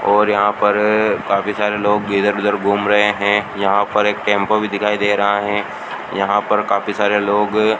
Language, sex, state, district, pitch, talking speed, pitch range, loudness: Hindi, male, Rajasthan, Bikaner, 105 Hz, 200 wpm, 100-105 Hz, -16 LUFS